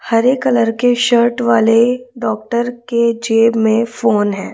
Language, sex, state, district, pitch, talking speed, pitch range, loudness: Hindi, female, Chhattisgarh, Raipur, 235 Hz, 145 wpm, 225-245 Hz, -14 LUFS